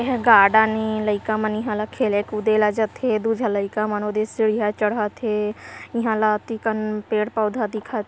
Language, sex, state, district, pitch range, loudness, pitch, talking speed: Hindi, female, Bihar, Araria, 210-220 Hz, -21 LUFS, 215 Hz, 90 wpm